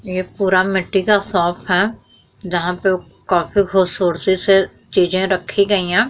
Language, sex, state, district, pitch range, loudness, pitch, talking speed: Hindi, female, Uttar Pradesh, Muzaffarnagar, 180-195 Hz, -17 LUFS, 190 Hz, 155 wpm